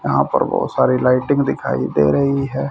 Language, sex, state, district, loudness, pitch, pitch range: Hindi, male, Haryana, Rohtak, -17 LUFS, 135 Hz, 125-140 Hz